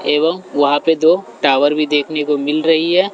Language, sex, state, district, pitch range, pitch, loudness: Hindi, male, Bihar, West Champaran, 145-165 Hz, 155 Hz, -15 LUFS